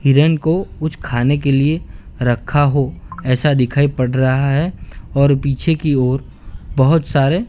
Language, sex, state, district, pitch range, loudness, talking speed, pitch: Hindi, male, Gujarat, Gandhinagar, 130-150 Hz, -16 LUFS, 150 wpm, 140 Hz